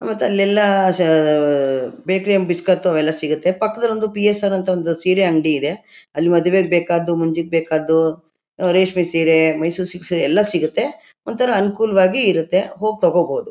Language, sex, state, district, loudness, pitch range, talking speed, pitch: Kannada, female, Karnataka, Mysore, -17 LUFS, 160-195 Hz, 155 wpm, 180 Hz